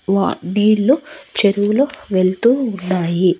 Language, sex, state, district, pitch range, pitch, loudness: Telugu, female, Andhra Pradesh, Annamaya, 185-260 Hz, 205 Hz, -16 LUFS